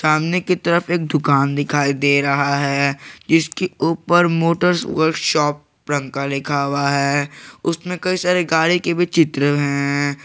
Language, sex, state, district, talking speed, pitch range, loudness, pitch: Hindi, male, Jharkhand, Garhwa, 145 wpm, 140-170 Hz, -18 LUFS, 150 Hz